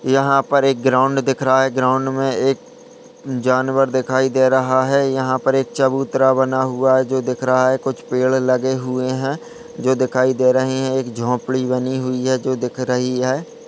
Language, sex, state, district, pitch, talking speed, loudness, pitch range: Hindi, male, Bihar, Purnia, 130 Hz, 195 wpm, -18 LUFS, 130-135 Hz